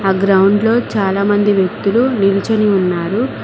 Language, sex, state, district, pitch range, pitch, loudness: Telugu, female, Telangana, Mahabubabad, 195-215 Hz, 200 Hz, -14 LUFS